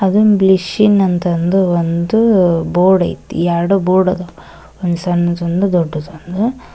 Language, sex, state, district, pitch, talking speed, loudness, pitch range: Kannada, female, Karnataka, Koppal, 180 Hz, 105 wpm, -14 LUFS, 170-190 Hz